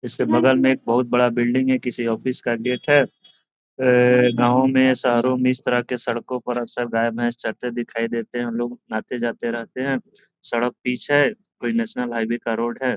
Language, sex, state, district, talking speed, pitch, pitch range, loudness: Hindi, male, Bihar, Gopalganj, 195 wpm, 125 Hz, 120-125 Hz, -21 LUFS